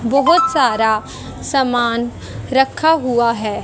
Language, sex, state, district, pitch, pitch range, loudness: Hindi, female, Haryana, Jhajjar, 245 Hz, 230-275 Hz, -16 LUFS